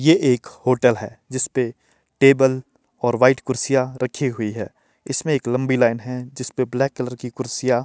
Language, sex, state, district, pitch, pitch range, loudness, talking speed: Hindi, male, Himachal Pradesh, Shimla, 125 Hz, 125-130 Hz, -20 LUFS, 170 wpm